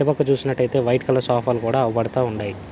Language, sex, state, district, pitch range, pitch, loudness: Telugu, male, Andhra Pradesh, Anantapur, 115-135 Hz, 125 Hz, -21 LUFS